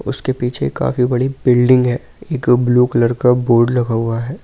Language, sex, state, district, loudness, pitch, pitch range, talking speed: Hindi, male, Delhi, New Delhi, -15 LUFS, 125 Hz, 120-130 Hz, 205 wpm